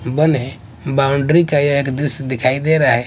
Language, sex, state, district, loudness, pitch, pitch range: Hindi, male, Maharashtra, Washim, -16 LUFS, 140 Hz, 130-150 Hz